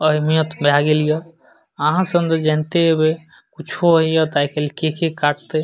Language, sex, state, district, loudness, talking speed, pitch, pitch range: Maithili, male, Bihar, Madhepura, -17 LUFS, 170 wpm, 155 Hz, 150-165 Hz